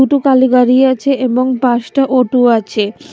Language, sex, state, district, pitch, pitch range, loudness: Bengali, female, Tripura, West Tripura, 255 Hz, 245-265 Hz, -12 LUFS